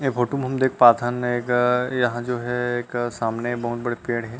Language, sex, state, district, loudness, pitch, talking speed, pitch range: Chhattisgarhi, male, Chhattisgarh, Rajnandgaon, -22 LUFS, 120 Hz, 220 wpm, 120-125 Hz